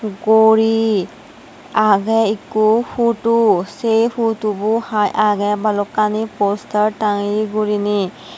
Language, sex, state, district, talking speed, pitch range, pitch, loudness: Chakma, female, Tripura, West Tripura, 85 wpm, 205-225 Hz, 215 Hz, -16 LUFS